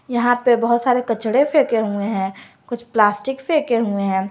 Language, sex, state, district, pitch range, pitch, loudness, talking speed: Hindi, female, Jharkhand, Garhwa, 210-250 Hz, 235 Hz, -18 LUFS, 180 wpm